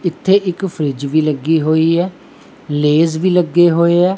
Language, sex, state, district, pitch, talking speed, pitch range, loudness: Punjabi, male, Punjab, Pathankot, 170 Hz, 160 wpm, 155-180 Hz, -14 LUFS